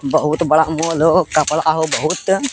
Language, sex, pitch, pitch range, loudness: Angika, male, 160 Hz, 155-165 Hz, -16 LUFS